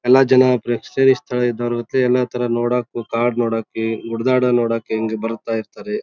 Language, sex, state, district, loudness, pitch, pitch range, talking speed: Kannada, male, Karnataka, Bijapur, -19 LUFS, 120 Hz, 115-125 Hz, 160 wpm